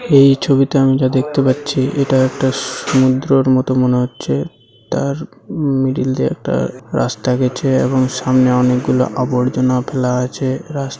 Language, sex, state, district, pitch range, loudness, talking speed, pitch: Bengali, male, West Bengal, Malda, 130-135 Hz, -16 LUFS, 140 wpm, 130 Hz